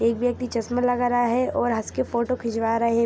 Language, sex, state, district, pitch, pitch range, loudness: Hindi, female, Jharkhand, Sahebganj, 240 Hz, 230-245 Hz, -24 LUFS